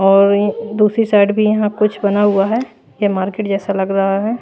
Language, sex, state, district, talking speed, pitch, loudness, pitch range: Hindi, female, Chhattisgarh, Raipur, 220 wpm, 205 Hz, -15 LUFS, 195-215 Hz